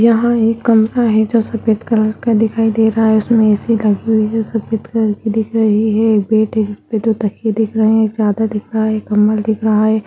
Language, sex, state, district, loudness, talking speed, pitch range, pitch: Hindi, female, Bihar, Jahanabad, -14 LUFS, 255 wpm, 215-225 Hz, 220 Hz